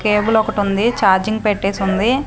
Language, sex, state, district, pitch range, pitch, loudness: Telugu, female, Andhra Pradesh, Manyam, 200-220 Hz, 210 Hz, -16 LUFS